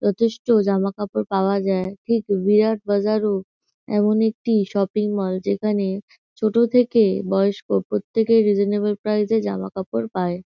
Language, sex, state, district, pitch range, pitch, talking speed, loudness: Bengali, female, West Bengal, North 24 Parganas, 195-215 Hz, 205 Hz, 120 wpm, -21 LUFS